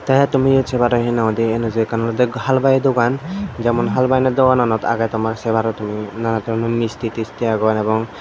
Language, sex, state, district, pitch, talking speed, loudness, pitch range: Chakma, male, Tripura, Dhalai, 115 Hz, 190 wpm, -18 LUFS, 115-130 Hz